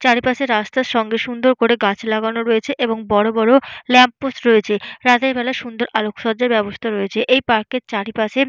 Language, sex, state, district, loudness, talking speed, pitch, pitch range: Bengali, female, West Bengal, Dakshin Dinajpur, -17 LUFS, 175 wpm, 235 Hz, 220-255 Hz